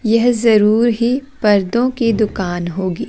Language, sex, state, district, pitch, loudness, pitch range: Hindi, female, Chandigarh, Chandigarh, 225 Hz, -15 LUFS, 205-240 Hz